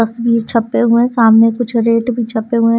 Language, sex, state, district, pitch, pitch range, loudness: Hindi, female, Punjab, Kapurthala, 230 Hz, 225-235 Hz, -13 LUFS